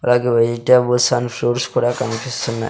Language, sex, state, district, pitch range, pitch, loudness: Telugu, male, Andhra Pradesh, Sri Satya Sai, 115-125 Hz, 120 Hz, -17 LUFS